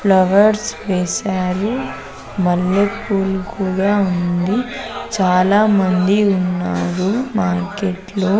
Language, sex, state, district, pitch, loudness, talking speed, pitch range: Telugu, female, Andhra Pradesh, Sri Satya Sai, 190 Hz, -17 LUFS, 70 wpm, 185-205 Hz